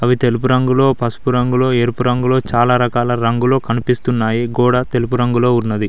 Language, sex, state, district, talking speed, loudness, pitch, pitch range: Telugu, male, Telangana, Mahabubabad, 155 wpm, -15 LUFS, 125 Hz, 120-125 Hz